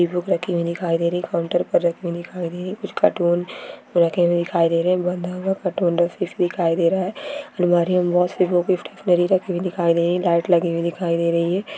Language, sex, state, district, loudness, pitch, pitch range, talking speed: Hindi, female, Bihar, Jahanabad, -21 LUFS, 175 Hz, 170-180 Hz, 265 wpm